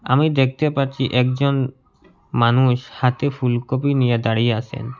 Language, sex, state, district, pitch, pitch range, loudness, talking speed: Bengali, male, Assam, Hailakandi, 130 Hz, 125-135 Hz, -19 LUFS, 120 wpm